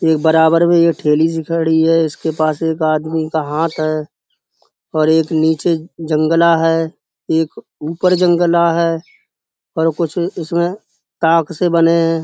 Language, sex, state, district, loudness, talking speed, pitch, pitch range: Hindi, male, Uttar Pradesh, Budaun, -15 LUFS, 150 wpm, 165 Hz, 160-170 Hz